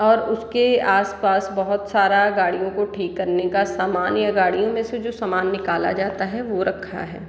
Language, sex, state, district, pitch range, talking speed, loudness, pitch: Hindi, female, Bihar, East Champaran, 190-210 Hz, 200 wpm, -21 LUFS, 195 Hz